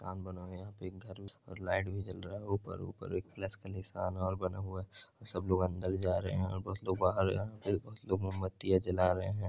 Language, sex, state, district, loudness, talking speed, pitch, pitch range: Hindi, male, Andhra Pradesh, Chittoor, -37 LUFS, 255 wpm, 95 Hz, 95-100 Hz